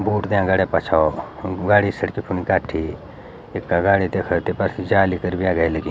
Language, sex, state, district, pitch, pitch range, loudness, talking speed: Garhwali, male, Uttarakhand, Uttarkashi, 95 Hz, 85-100 Hz, -20 LUFS, 175 wpm